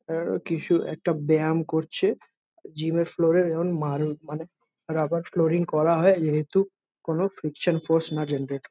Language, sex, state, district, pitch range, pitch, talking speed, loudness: Bengali, male, West Bengal, Jhargram, 155-175 Hz, 165 Hz, 160 wpm, -25 LUFS